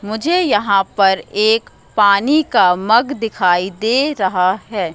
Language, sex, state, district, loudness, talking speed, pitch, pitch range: Hindi, female, Madhya Pradesh, Katni, -15 LUFS, 135 wpm, 210 Hz, 190-230 Hz